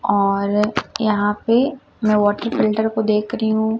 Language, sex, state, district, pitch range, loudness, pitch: Hindi, female, Chhattisgarh, Raipur, 205-225 Hz, -19 LUFS, 215 Hz